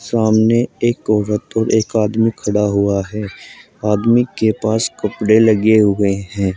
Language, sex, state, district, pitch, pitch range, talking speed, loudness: Hindi, male, Uttar Pradesh, Saharanpur, 110 Hz, 105-110 Hz, 145 wpm, -16 LUFS